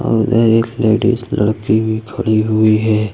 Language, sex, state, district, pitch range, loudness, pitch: Hindi, male, Uttar Pradesh, Lucknow, 110-115 Hz, -14 LUFS, 110 Hz